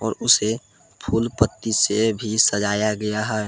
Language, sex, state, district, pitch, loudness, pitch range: Hindi, male, Jharkhand, Palamu, 110 Hz, -20 LUFS, 105-110 Hz